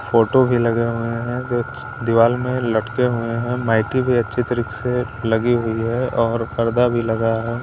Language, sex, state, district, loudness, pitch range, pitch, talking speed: Hindi, male, Maharashtra, Washim, -19 LUFS, 115-125 Hz, 115 Hz, 190 wpm